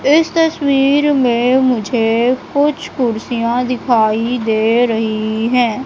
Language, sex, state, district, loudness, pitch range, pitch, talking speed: Hindi, female, Madhya Pradesh, Katni, -14 LUFS, 230-270 Hz, 245 Hz, 100 wpm